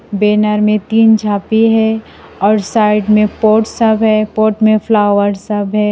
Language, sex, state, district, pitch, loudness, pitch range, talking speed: Hindi, female, Assam, Sonitpur, 215 Hz, -12 LUFS, 210-220 Hz, 160 wpm